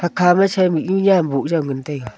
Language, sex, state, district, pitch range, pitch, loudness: Wancho, female, Arunachal Pradesh, Longding, 145-185 Hz, 170 Hz, -17 LUFS